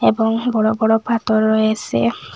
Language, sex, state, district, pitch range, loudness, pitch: Bengali, female, Assam, Hailakandi, 215-225 Hz, -17 LUFS, 220 Hz